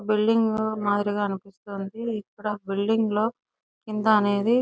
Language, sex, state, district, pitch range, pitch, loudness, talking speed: Telugu, female, Andhra Pradesh, Chittoor, 205-220 Hz, 210 Hz, -25 LUFS, 115 wpm